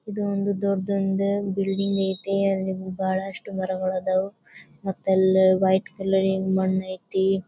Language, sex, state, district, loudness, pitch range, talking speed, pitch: Kannada, female, Karnataka, Bijapur, -24 LUFS, 190-195 Hz, 130 wpm, 190 Hz